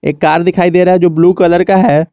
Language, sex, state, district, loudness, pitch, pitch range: Hindi, male, Jharkhand, Garhwa, -9 LUFS, 175 Hz, 165-180 Hz